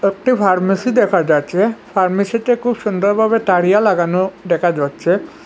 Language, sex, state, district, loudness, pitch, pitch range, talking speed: Bengali, male, Assam, Hailakandi, -15 LUFS, 195 Hz, 180-220 Hz, 130 wpm